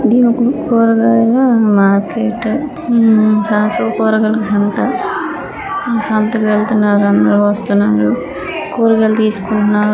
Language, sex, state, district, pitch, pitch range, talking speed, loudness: Telugu, female, Andhra Pradesh, Krishna, 220 Hz, 210-230 Hz, 70 wpm, -13 LUFS